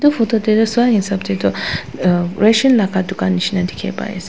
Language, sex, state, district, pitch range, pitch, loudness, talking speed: Nagamese, female, Nagaland, Dimapur, 180-225 Hz, 195 Hz, -16 LUFS, 240 wpm